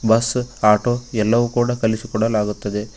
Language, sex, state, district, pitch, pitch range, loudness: Kannada, male, Karnataka, Koppal, 110 Hz, 105-120 Hz, -19 LUFS